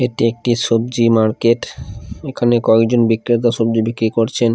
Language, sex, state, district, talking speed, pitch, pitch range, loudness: Bengali, male, Odisha, Khordha, 145 wpm, 115 Hz, 115-120 Hz, -15 LUFS